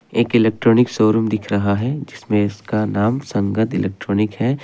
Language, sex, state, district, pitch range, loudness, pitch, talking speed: Hindi, male, Assam, Kamrup Metropolitan, 105-120 Hz, -18 LUFS, 110 Hz, 155 wpm